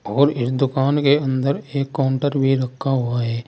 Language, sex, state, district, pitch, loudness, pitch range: Hindi, male, Uttar Pradesh, Saharanpur, 135 Hz, -20 LUFS, 130-140 Hz